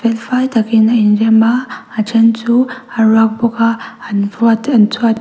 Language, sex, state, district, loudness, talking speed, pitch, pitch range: Mizo, female, Mizoram, Aizawl, -13 LUFS, 185 wpm, 230 Hz, 220-235 Hz